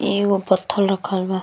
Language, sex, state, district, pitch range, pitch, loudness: Bhojpuri, female, Uttar Pradesh, Gorakhpur, 190-200 Hz, 190 Hz, -20 LUFS